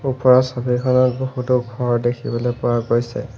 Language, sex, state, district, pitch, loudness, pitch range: Assamese, male, Assam, Hailakandi, 125 Hz, -19 LUFS, 120-125 Hz